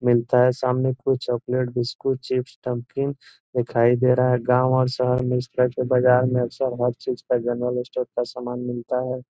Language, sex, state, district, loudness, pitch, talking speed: Hindi, male, Bihar, Gopalganj, -22 LUFS, 125 Hz, 185 wpm